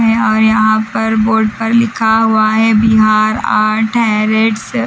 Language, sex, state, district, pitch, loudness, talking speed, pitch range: Hindi, female, Bihar, Patna, 220 Hz, -12 LUFS, 160 wpm, 215-225 Hz